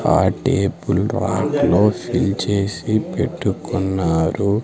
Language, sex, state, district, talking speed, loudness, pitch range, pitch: Telugu, male, Andhra Pradesh, Sri Satya Sai, 65 wpm, -19 LUFS, 90-105 Hz, 100 Hz